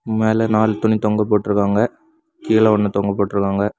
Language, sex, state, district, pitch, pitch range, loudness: Tamil, male, Tamil Nadu, Kanyakumari, 105 Hz, 100-110 Hz, -17 LUFS